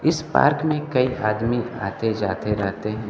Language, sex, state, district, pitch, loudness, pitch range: Hindi, male, Bihar, Kaimur, 115 Hz, -22 LUFS, 105-140 Hz